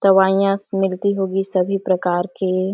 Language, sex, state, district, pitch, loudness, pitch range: Hindi, female, Chhattisgarh, Sarguja, 195 Hz, -19 LUFS, 185-195 Hz